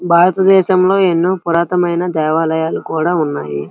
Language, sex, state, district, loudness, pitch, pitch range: Telugu, male, Andhra Pradesh, Srikakulam, -14 LUFS, 170 Hz, 160-185 Hz